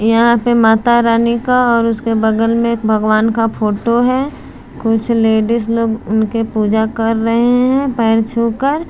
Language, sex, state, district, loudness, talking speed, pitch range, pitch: Hindi, female, Bihar, Patna, -14 LUFS, 170 wpm, 225-235 Hz, 230 Hz